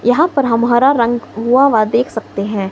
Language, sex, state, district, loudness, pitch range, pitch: Hindi, female, Himachal Pradesh, Shimla, -14 LUFS, 220-255 Hz, 240 Hz